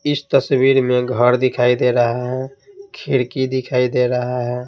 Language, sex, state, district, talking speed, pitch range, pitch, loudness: Hindi, male, Bihar, Patna, 165 wpm, 125-135 Hz, 125 Hz, -17 LUFS